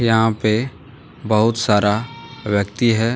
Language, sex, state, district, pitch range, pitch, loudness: Hindi, male, Jharkhand, Deoghar, 105-115 Hz, 115 Hz, -18 LUFS